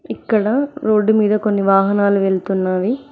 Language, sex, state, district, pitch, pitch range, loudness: Telugu, female, Telangana, Mahabubabad, 210 Hz, 195-220 Hz, -16 LUFS